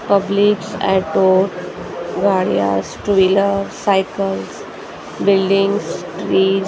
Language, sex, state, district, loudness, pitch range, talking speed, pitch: Hindi, female, Maharashtra, Gondia, -17 LUFS, 190-200 Hz, 80 wpm, 195 Hz